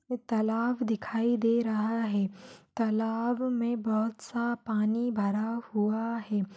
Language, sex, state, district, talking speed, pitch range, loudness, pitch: Hindi, female, Maharashtra, Solapur, 130 wpm, 215-235 Hz, -30 LUFS, 225 Hz